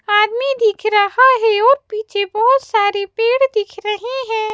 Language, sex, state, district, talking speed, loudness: Hindi, female, Madhya Pradesh, Bhopal, 160 wpm, -15 LUFS